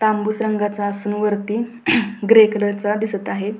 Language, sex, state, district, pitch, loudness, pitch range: Marathi, female, Maharashtra, Pune, 210 Hz, -19 LUFS, 205-220 Hz